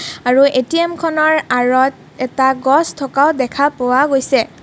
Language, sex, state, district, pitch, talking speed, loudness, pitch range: Assamese, female, Assam, Kamrup Metropolitan, 270 Hz, 130 wpm, -14 LUFS, 255-295 Hz